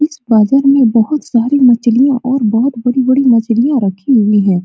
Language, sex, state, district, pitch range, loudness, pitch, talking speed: Hindi, female, Bihar, Supaul, 225-270 Hz, -11 LUFS, 245 Hz, 165 wpm